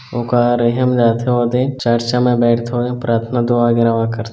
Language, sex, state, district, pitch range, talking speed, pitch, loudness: Chhattisgarhi, male, Chhattisgarh, Bilaspur, 115-125 Hz, 210 wpm, 120 Hz, -15 LUFS